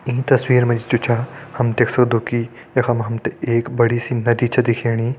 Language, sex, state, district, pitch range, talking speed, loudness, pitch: Hindi, male, Uttarakhand, Tehri Garhwal, 115-125 Hz, 220 wpm, -18 LUFS, 120 Hz